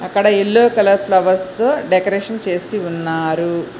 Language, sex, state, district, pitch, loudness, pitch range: Telugu, female, Telangana, Hyderabad, 190 Hz, -16 LUFS, 175-205 Hz